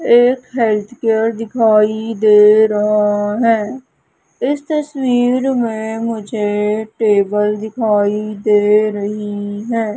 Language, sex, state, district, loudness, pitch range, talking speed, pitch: Hindi, female, Madhya Pradesh, Umaria, -15 LUFS, 210-230 Hz, 95 wpm, 220 Hz